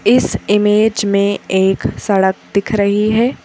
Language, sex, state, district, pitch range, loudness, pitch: Hindi, female, Madhya Pradesh, Bhopal, 200-215 Hz, -14 LUFS, 205 Hz